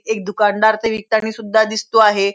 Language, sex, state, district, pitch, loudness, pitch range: Marathi, female, Maharashtra, Nagpur, 220 Hz, -16 LUFS, 210-220 Hz